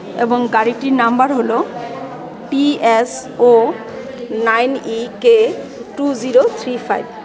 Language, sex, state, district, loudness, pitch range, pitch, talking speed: Bengali, female, Tripura, West Tripura, -15 LUFS, 235-270 Hz, 245 Hz, 125 wpm